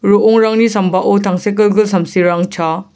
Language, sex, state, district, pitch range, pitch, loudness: Garo, male, Meghalaya, South Garo Hills, 185-210 Hz, 195 Hz, -12 LUFS